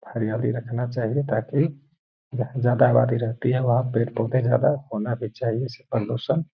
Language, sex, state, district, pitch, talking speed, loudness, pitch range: Hindi, male, Bihar, Gaya, 125 Hz, 165 wpm, -24 LUFS, 115-130 Hz